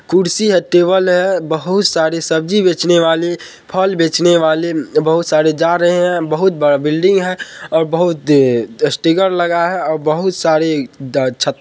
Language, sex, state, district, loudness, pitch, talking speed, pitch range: Hindi, male, Bihar, Purnia, -14 LUFS, 170 Hz, 170 wpm, 155-180 Hz